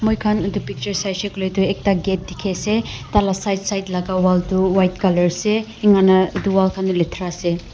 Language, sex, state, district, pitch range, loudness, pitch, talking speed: Nagamese, female, Nagaland, Dimapur, 185-200 Hz, -19 LUFS, 190 Hz, 200 wpm